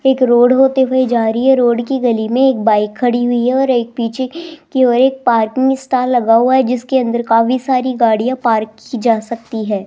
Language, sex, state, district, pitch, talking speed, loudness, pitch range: Hindi, female, Rajasthan, Jaipur, 245 Hz, 225 wpm, -14 LUFS, 230-260 Hz